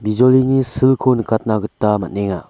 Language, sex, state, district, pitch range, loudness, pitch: Garo, male, Meghalaya, West Garo Hills, 105-130 Hz, -16 LUFS, 110 Hz